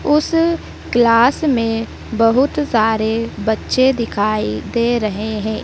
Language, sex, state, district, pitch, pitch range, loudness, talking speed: Hindi, female, Madhya Pradesh, Dhar, 230 Hz, 220-260 Hz, -17 LUFS, 105 wpm